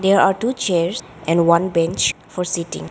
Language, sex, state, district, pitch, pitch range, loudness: English, female, Arunachal Pradesh, Lower Dibang Valley, 170 Hz, 165-185 Hz, -19 LUFS